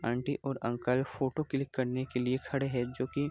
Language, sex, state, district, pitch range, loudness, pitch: Hindi, male, Bihar, Araria, 125-135 Hz, -33 LUFS, 130 Hz